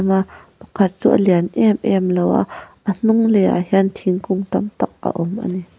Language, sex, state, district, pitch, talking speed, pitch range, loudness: Mizo, female, Mizoram, Aizawl, 190 Hz, 205 wpm, 185-200 Hz, -18 LUFS